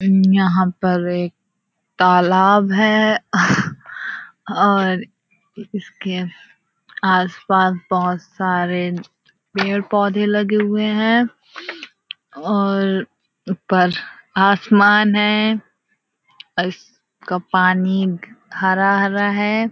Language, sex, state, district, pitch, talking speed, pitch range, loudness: Hindi, female, Uttar Pradesh, Hamirpur, 195 Hz, 75 wpm, 185-210 Hz, -17 LUFS